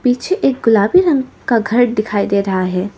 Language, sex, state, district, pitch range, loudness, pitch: Hindi, female, Arunachal Pradesh, Lower Dibang Valley, 200-265 Hz, -15 LUFS, 230 Hz